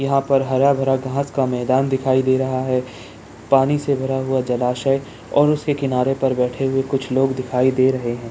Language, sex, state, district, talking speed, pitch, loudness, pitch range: Hindi, male, Bihar, Jamui, 180 wpm, 130 Hz, -19 LUFS, 125-135 Hz